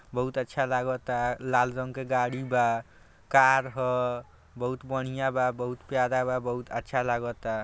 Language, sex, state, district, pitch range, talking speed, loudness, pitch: Bhojpuri, male, Bihar, East Champaran, 125-130 Hz, 150 wpm, -28 LUFS, 125 Hz